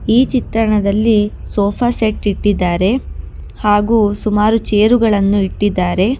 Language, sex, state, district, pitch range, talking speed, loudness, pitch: Kannada, female, Karnataka, Bangalore, 200-225 Hz, 95 wpm, -14 LUFS, 210 Hz